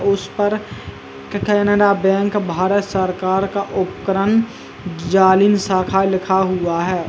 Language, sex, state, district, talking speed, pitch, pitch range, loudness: Hindi, male, Uttar Pradesh, Jalaun, 110 wpm, 190 Hz, 185-200 Hz, -17 LUFS